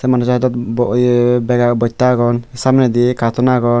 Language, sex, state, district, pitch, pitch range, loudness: Chakma, male, Tripura, West Tripura, 125 Hz, 120-125 Hz, -14 LUFS